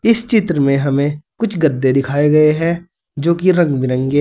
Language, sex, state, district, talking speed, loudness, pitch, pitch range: Hindi, male, Uttar Pradesh, Saharanpur, 185 wpm, -15 LUFS, 150 Hz, 140-175 Hz